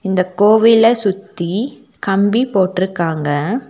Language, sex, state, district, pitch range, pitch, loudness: Tamil, female, Tamil Nadu, Nilgiris, 185-225 Hz, 200 Hz, -15 LUFS